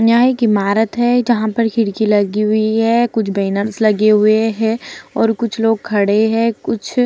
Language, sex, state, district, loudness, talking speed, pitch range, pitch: Hindi, female, Bihar, Vaishali, -15 LUFS, 185 wpm, 215-230 Hz, 220 Hz